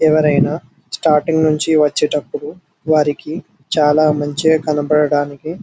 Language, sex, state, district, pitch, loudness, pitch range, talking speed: Telugu, male, Telangana, Karimnagar, 150 Hz, -15 LUFS, 150-160 Hz, 85 wpm